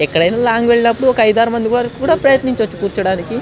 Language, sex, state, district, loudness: Telugu, male, Andhra Pradesh, Anantapur, -14 LUFS